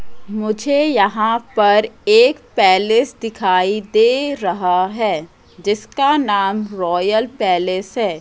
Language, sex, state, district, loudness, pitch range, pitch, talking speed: Hindi, female, Madhya Pradesh, Katni, -16 LUFS, 185-230 Hz, 215 Hz, 100 wpm